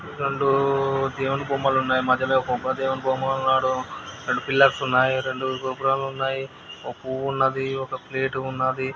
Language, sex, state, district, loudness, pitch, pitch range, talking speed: Telugu, male, Andhra Pradesh, Krishna, -23 LUFS, 135 Hz, 130-135 Hz, 155 wpm